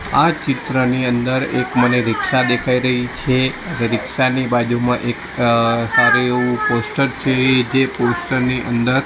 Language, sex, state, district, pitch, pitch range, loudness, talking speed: Gujarati, male, Gujarat, Gandhinagar, 125 Hz, 120-130 Hz, -17 LUFS, 145 wpm